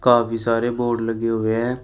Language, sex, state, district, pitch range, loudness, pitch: Hindi, male, Uttar Pradesh, Shamli, 115-120 Hz, -21 LUFS, 115 Hz